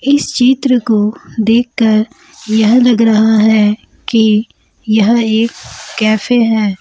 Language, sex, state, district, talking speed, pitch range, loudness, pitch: Hindi, female, Chhattisgarh, Raipur, 115 wpm, 215-240 Hz, -12 LUFS, 220 Hz